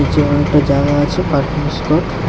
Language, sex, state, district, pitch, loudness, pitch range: Bengali, male, Tripura, West Tripura, 145 Hz, -15 LUFS, 145-150 Hz